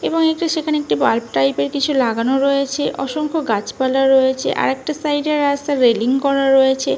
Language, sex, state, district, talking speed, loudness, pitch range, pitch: Bengali, female, West Bengal, Malda, 165 wpm, -17 LUFS, 260-295 Hz, 275 Hz